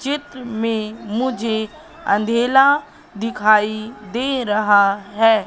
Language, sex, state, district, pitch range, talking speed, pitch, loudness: Hindi, female, Madhya Pradesh, Katni, 215-260 Hz, 90 wpm, 225 Hz, -18 LUFS